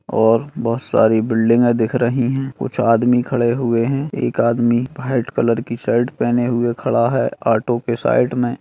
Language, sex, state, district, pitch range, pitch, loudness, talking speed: Hindi, male, Bihar, Bhagalpur, 115-125 Hz, 120 Hz, -17 LUFS, 180 wpm